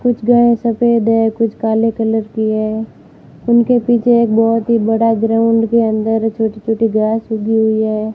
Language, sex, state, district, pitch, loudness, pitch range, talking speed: Hindi, female, Rajasthan, Barmer, 225 Hz, -14 LUFS, 220-230 Hz, 175 wpm